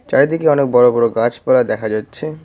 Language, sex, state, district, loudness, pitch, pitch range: Bengali, male, West Bengal, Cooch Behar, -15 LUFS, 125 Hz, 115-145 Hz